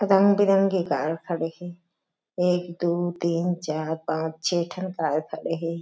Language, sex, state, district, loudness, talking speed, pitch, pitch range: Chhattisgarhi, female, Chhattisgarh, Jashpur, -25 LUFS, 145 wpm, 170 Hz, 160-180 Hz